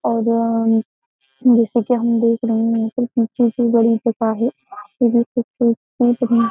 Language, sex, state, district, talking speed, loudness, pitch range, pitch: Hindi, female, Uttar Pradesh, Jyotiba Phule Nagar, 100 wpm, -17 LUFS, 230-240 Hz, 235 Hz